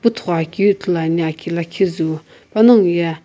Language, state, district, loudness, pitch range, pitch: Sumi, Nagaland, Kohima, -16 LUFS, 165-200 Hz, 170 Hz